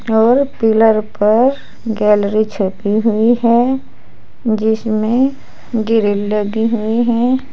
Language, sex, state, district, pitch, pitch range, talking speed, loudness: Hindi, female, Uttar Pradesh, Saharanpur, 220 Hz, 215-235 Hz, 95 wpm, -15 LUFS